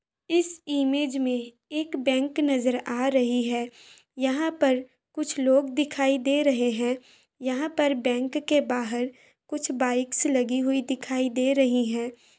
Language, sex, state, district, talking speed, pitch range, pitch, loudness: Hindi, female, Bihar, Madhepura, 145 wpm, 250-285 Hz, 265 Hz, -26 LUFS